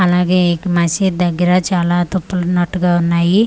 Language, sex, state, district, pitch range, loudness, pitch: Telugu, female, Andhra Pradesh, Manyam, 175-185 Hz, -15 LUFS, 180 Hz